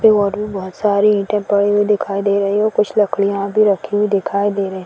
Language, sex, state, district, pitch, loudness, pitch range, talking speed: Hindi, female, Uttar Pradesh, Varanasi, 205 Hz, -16 LUFS, 200-210 Hz, 245 wpm